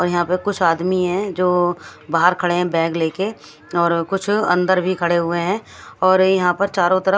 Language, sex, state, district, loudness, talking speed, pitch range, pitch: Hindi, female, Bihar, West Champaran, -18 LUFS, 210 wpm, 175-185 Hz, 180 Hz